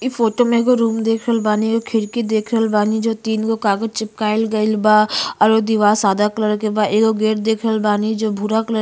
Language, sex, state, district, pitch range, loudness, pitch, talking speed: Bhojpuri, female, Uttar Pradesh, Ghazipur, 215-225 Hz, -17 LUFS, 220 Hz, 240 wpm